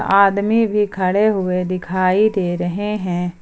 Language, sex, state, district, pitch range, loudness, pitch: Hindi, male, Jharkhand, Ranchi, 180-210 Hz, -18 LUFS, 190 Hz